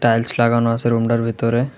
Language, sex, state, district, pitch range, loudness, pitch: Bengali, male, Tripura, West Tripura, 115-120 Hz, -17 LUFS, 115 Hz